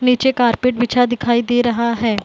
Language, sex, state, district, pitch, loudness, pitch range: Hindi, female, Uttar Pradesh, Hamirpur, 240 Hz, -16 LUFS, 235-250 Hz